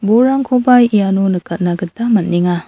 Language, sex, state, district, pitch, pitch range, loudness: Garo, female, Meghalaya, South Garo Hills, 200 Hz, 175-240 Hz, -13 LUFS